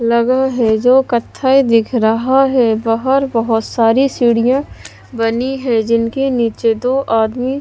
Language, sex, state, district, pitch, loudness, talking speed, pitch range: Hindi, female, Bihar, West Champaran, 240 Hz, -14 LUFS, 135 wpm, 225-260 Hz